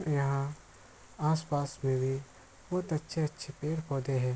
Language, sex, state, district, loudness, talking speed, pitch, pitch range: Hindi, male, Bihar, Bhagalpur, -33 LUFS, 110 wpm, 145 Hz, 140-155 Hz